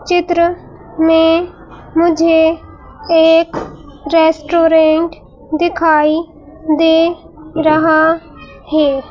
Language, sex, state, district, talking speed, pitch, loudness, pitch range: Hindi, female, Madhya Pradesh, Bhopal, 60 wpm, 320 Hz, -13 LUFS, 315-330 Hz